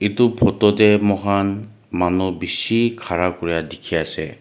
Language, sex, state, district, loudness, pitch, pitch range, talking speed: Nagamese, male, Nagaland, Dimapur, -19 LUFS, 100 Hz, 90-105 Hz, 150 wpm